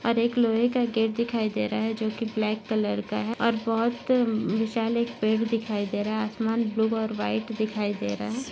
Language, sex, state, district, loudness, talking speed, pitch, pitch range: Hindi, female, Maharashtra, Nagpur, -26 LUFS, 230 wpm, 225 Hz, 215-230 Hz